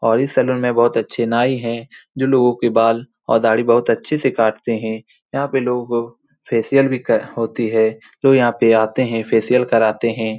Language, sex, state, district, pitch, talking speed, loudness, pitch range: Hindi, male, Bihar, Saran, 115 Hz, 200 wpm, -17 LUFS, 115-125 Hz